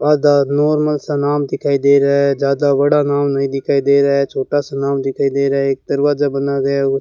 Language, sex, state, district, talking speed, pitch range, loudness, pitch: Hindi, male, Rajasthan, Bikaner, 250 wpm, 140-145 Hz, -15 LUFS, 140 Hz